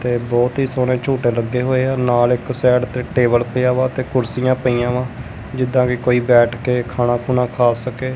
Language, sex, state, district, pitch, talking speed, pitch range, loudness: Punjabi, male, Punjab, Kapurthala, 125 Hz, 205 wpm, 120-130 Hz, -17 LUFS